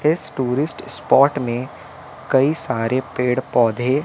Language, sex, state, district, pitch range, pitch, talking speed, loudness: Hindi, male, Madhya Pradesh, Umaria, 125-140 Hz, 130 Hz, 120 wpm, -19 LUFS